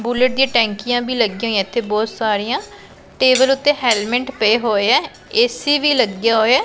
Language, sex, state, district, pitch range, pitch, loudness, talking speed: Punjabi, female, Punjab, Pathankot, 220-260 Hz, 240 Hz, -16 LUFS, 170 wpm